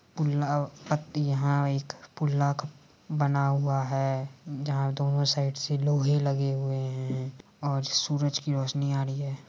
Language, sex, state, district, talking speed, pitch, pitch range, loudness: Hindi, male, Bihar, Madhepura, 150 wpm, 140 Hz, 135-145 Hz, -28 LUFS